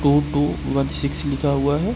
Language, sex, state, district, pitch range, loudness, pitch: Hindi, male, Bihar, Gopalganj, 140-145 Hz, -21 LUFS, 145 Hz